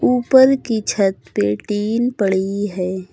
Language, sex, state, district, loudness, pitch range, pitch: Hindi, female, Uttar Pradesh, Lucknow, -17 LUFS, 190-240 Hz, 205 Hz